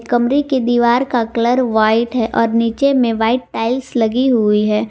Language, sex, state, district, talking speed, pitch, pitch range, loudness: Hindi, female, Jharkhand, Garhwa, 185 wpm, 235 Hz, 225-250 Hz, -15 LUFS